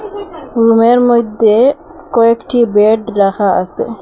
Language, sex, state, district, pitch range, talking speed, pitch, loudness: Bengali, female, Assam, Hailakandi, 215-255 Hz, 90 wpm, 230 Hz, -11 LUFS